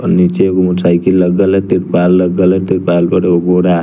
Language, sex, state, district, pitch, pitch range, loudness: Hindi, male, Bihar, West Champaran, 90 Hz, 90-95 Hz, -11 LUFS